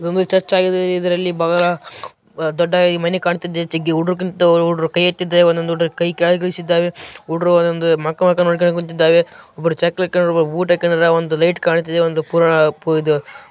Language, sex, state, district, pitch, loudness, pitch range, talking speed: Kannada, male, Karnataka, Raichur, 170 Hz, -16 LUFS, 165-175 Hz, 160 wpm